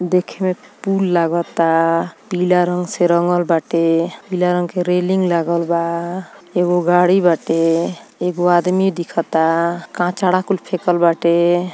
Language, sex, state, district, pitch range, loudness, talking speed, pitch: Bhojpuri, female, Uttar Pradesh, Ghazipur, 170-180 Hz, -17 LUFS, 130 wpm, 175 Hz